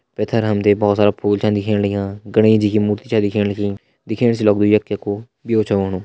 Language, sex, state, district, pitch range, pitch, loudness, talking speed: Hindi, male, Uttarakhand, Tehri Garhwal, 100-110 Hz, 105 Hz, -17 LUFS, 250 wpm